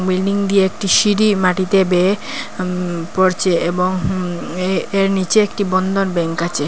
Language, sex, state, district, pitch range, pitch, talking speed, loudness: Bengali, female, Assam, Hailakandi, 180-195 Hz, 185 Hz, 160 wpm, -17 LUFS